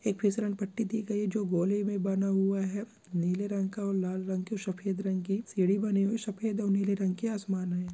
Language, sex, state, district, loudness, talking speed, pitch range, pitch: Hindi, male, Chhattisgarh, Bilaspur, -31 LUFS, 255 wpm, 190-210 Hz, 195 Hz